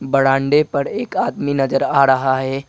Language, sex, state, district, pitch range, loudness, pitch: Hindi, male, Assam, Kamrup Metropolitan, 135-140 Hz, -17 LUFS, 135 Hz